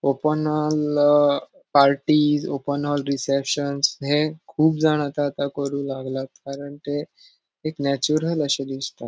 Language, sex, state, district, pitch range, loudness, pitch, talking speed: Konkani, male, Goa, North and South Goa, 140-150 Hz, -22 LUFS, 145 Hz, 130 wpm